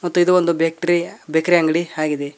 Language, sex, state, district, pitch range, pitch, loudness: Kannada, male, Karnataka, Koppal, 160-175 Hz, 170 Hz, -18 LUFS